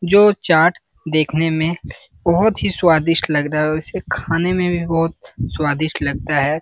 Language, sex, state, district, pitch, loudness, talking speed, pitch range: Hindi, male, Bihar, Jamui, 165 Hz, -17 LUFS, 170 wpm, 155-175 Hz